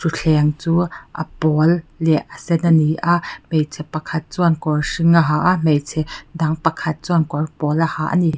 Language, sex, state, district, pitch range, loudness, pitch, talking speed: Mizo, female, Mizoram, Aizawl, 155-170 Hz, -18 LUFS, 160 Hz, 195 wpm